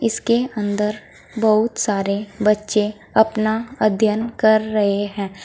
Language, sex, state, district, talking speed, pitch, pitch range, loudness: Hindi, female, Uttar Pradesh, Saharanpur, 110 wpm, 215 Hz, 205-220 Hz, -19 LUFS